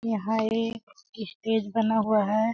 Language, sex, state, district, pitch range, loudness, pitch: Hindi, female, Chhattisgarh, Balrampur, 215-225 Hz, -26 LUFS, 220 Hz